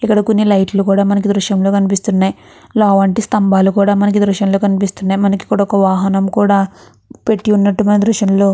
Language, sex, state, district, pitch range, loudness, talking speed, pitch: Telugu, female, Andhra Pradesh, Chittoor, 195-205 Hz, -13 LUFS, 145 wpm, 200 Hz